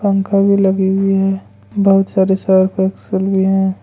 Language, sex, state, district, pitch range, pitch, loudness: Hindi, male, Jharkhand, Ranchi, 190-195 Hz, 195 Hz, -14 LUFS